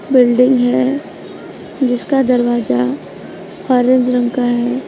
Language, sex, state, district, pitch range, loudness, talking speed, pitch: Hindi, female, Uttar Pradesh, Lucknow, 240-255 Hz, -14 LUFS, 100 wpm, 250 Hz